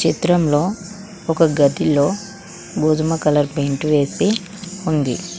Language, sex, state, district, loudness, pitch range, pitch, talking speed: Telugu, female, Telangana, Mahabubabad, -18 LUFS, 150-190 Hz, 165 Hz, 90 wpm